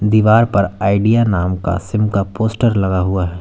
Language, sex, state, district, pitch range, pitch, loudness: Hindi, male, Uttar Pradesh, Lalitpur, 95-110 Hz, 100 Hz, -15 LUFS